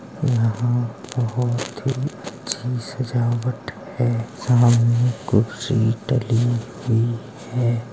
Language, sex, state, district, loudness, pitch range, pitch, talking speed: Hindi, male, Uttar Pradesh, Jalaun, -22 LUFS, 115-125 Hz, 120 Hz, 85 wpm